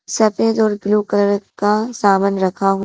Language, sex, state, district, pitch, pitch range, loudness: Hindi, female, Madhya Pradesh, Dhar, 205 Hz, 195-215 Hz, -16 LUFS